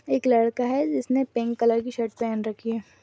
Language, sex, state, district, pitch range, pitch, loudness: Hindi, female, Rajasthan, Nagaur, 230-250 Hz, 235 Hz, -25 LUFS